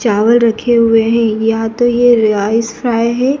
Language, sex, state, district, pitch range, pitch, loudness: Hindi, female, Madhya Pradesh, Dhar, 225-240 Hz, 230 Hz, -12 LUFS